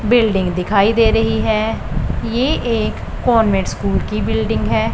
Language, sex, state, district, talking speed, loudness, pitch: Hindi, female, Punjab, Pathankot, 145 wpm, -17 LUFS, 195 Hz